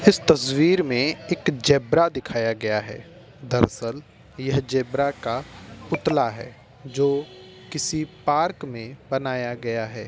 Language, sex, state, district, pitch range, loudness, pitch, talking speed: Hindi, male, Uttar Pradesh, Varanasi, 115-145 Hz, -23 LUFS, 130 Hz, 125 wpm